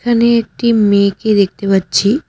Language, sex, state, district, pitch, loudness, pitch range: Bengali, female, West Bengal, Cooch Behar, 210 Hz, -13 LUFS, 200-235 Hz